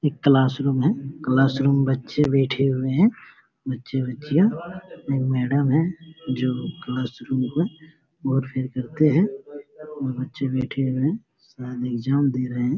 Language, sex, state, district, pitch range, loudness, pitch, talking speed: Hindi, male, Jharkhand, Jamtara, 130-155 Hz, -23 LUFS, 135 Hz, 155 wpm